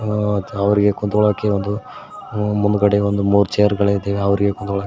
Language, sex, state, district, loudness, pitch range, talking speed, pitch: Kannada, male, Karnataka, Koppal, -18 LUFS, 100-105 Hz, 125 wpm, 100 Hz